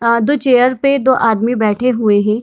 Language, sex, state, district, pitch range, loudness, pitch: Hindi, female, Bihar, Darbhanga, 220-260 Hz, -13 LUFS, 240 Hz